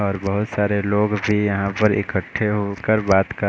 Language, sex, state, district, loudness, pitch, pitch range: Hindi, male, Bihar, West Champaran, -20 LUFS, 105 Hz, 100-105 Hz